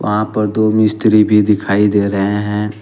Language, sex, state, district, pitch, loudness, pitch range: Hindi, male, Jharkhand, Ranchi, 105 Hz, -14 LUFS, 105-110 Hz